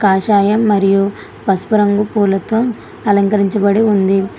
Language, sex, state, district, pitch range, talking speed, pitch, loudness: Telugu, female, Telangana, Hyderabad, 195-210 Hz, 95 wpm, 205 Hz, -14 LUFS